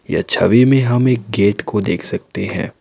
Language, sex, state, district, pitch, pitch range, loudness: Hindi, male, Assam, Kamrup Metropolitan, 120 Hz, 110-130 Hz, -16 LUFS